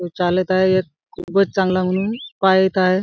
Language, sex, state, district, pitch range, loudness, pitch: Marathi, male, Maharashtra, Chandrapur, 185-190 Hz, -18 LUFS, 185 Hz